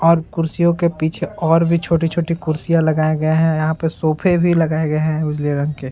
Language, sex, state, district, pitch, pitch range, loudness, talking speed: Hindi, male, Bihar, Saran, 160 Hz, 155-170 Hz, -17 LUFS, 215 wpm